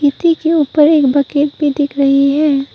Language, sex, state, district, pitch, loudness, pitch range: Hindi, female, Arunachal Pradesh, Papum Pare, 290 Hz, -13 LUFS, 280-300 Hz